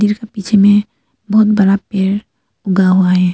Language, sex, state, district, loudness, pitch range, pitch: Hindi, female, Arunachal Pradesh, Lower Dibang Valley, -13 LUFS, 190-210 Hz, 200 Hz